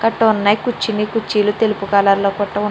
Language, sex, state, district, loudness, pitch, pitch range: Telugu, female, Andhra Pradesh, Chittoor, -16 LUFS, 210 Hz, 205-225 Hz